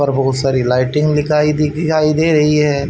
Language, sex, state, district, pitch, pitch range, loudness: Hindi, male, Haryana, Rohtak, 150 Hz, 135-150 Hz, -14 LUFS